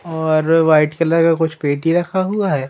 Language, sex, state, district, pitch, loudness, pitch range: Hindi, female, Madhya Pradesh, Umaria, 165 Hz, -16 LUFS, 155-170 Hz